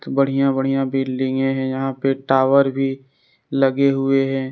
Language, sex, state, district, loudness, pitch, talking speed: Hindi, male, Jharkhand, Deoghar, -19 LUFS, 135 Hz, 145 wpm